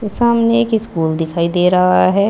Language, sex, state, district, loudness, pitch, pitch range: Hindi, female, Uttar Pradesh, Saharanpur, -14 LUFS, 180 Hz, 170-225 Hz